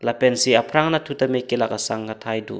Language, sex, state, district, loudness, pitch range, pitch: Karbi, male, Assam, Karbi Anglong, -21 LUFS, 110-130 Hz, 120 Hz